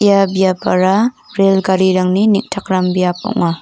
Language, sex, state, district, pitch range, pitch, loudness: Garo, female, Meghalaya, North Garo Hills, 185-200 Hz, 190 Hz, -14 LUFS